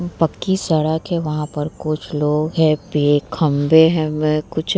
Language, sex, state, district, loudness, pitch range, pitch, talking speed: Hindi, female, Bihar, Vaishali, -18 LUFS, 150-165 Hz, 155 Hz, 215 wpm